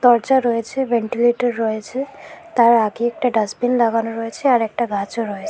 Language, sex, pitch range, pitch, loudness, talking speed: Bengali, female, 225-250 Hz, 235 Hz, -19 LUFS, 155 wpm